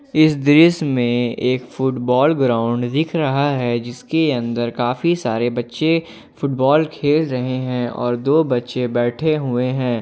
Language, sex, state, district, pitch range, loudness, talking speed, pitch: Hindi, male, Jharkhand, Ranchi, 120-150 Hz, -18 LUFS, 145 wpm, 130 Hz